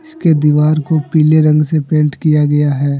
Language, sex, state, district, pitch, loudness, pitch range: Hindi, male, Jharkhand, Deoghar, 150 Hz, -12 LUFS, 150-155 Hz